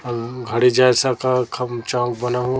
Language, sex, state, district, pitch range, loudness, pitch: Hindi, female, Chhattisgarh, Raipur, 120-125 Hz, -19 LUFS, 125 Hz